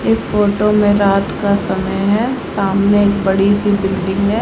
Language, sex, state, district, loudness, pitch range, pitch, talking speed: Hindi, female, Haryana, Charkhi Dadri, -15 LUFS, 195-205 Hz, 200 Hz, 175 wpm